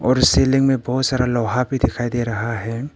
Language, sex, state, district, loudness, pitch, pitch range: Hindi, male, Arunachal Pradesh, Papum Pare, -19 LUFS, 125 Hz, 120-130 Hz